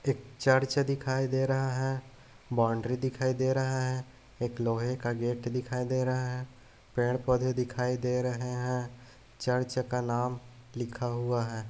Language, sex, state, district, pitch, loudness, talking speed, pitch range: Hindi, male, Chhattisgarh, Korba, 125 Hz, -31 LUFS, 155 wpm, 120-130 Hz